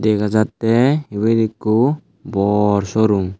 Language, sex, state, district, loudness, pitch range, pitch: Chakma, male, Tripura, Dhalai, -17 LUFS, 105-115 Hz, 110 Hz